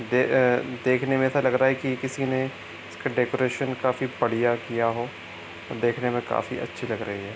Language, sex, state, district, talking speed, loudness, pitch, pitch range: Hindi, male, Bihar, East Champaran, 205 wpm, -25 LUFS, 125 Hz, 115-130 Hz